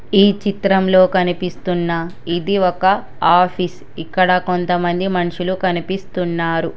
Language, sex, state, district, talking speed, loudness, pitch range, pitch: Telugu, male, Telangana, Hyderabad, 90 wpm, -17 LUFS, 175-190 Hz, 180 Hz